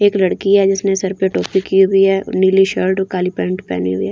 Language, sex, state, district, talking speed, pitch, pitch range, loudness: Hindi, female, Delhi, New Delhi, 245 wpm, 190 Hz, 185-195 Hz, -15 LUFS